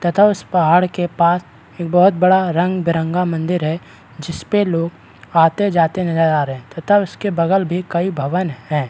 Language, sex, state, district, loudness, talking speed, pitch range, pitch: Hindi, male, Uttarakhand, Tehri Garhwal, -17 LUFS, 190 wpm, 160-185 Hz, 170 Hz